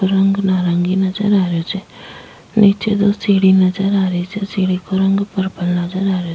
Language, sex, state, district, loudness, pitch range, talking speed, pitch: Rajasthani, female, Rajasthan, Nagaur, -16 LUFS, 185-200 Hz, 200 wpm, 190 Hz